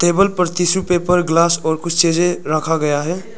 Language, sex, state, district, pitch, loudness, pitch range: Hindi, male, Arunachal Pradesh, Lower Dibang Valley, 175 Hz, -16 LUFS, 160-180 Hz